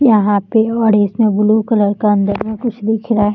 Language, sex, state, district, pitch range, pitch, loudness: Hindi, female, Uttar Pradesh, Muzaffarnagar, 205-225 Hz, 215 Hz, -14 LUFS